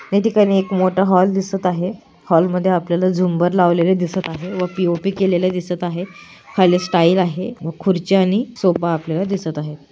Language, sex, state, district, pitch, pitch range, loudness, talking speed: Marathi, female, Maharashtra, Chandrapur, 180 Hz, 175-190 Hz, -18 LUFS, 175 wpm